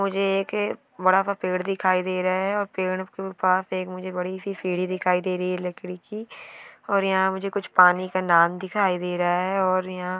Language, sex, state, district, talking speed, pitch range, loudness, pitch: Hindi, female, Bihar, Sitamarhi, 195 wpm, 180-195 Hz, -24 LUFS, 185 Hz